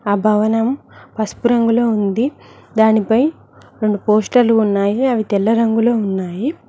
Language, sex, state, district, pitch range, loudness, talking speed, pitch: Telugu, female, Telangana, Mahabubabad, 210-235 Hz, -16 LUFS, 115 wpm, 220 Hz